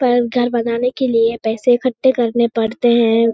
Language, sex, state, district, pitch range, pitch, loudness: Hindi, female, Bihar, Kishanganj, 230-245 Hz, 235 Hz, -16 LUFS